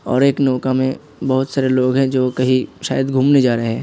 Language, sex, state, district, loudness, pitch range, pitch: Hindi, male, Uttar Pradesh, Hamirpur, -17 LUFS, 130-135 Hz, 130 Hz